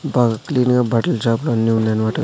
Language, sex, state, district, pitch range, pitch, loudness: Telugu, male, Andhra Pradesh, Sri Satya Sai, 115-125 Hz, 115 Hz, -17 LUFS